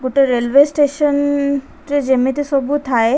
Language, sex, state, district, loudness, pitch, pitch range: Odia, female, Odisha, Khordha, -16 LUFS, 280 Hz, 265-290 Hz